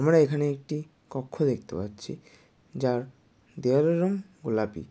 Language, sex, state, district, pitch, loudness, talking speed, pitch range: Bengali, male, West Bengal, Jalpaiguri, 135 Hz, -28 LUFS, 120 wpm, 115-155 Hz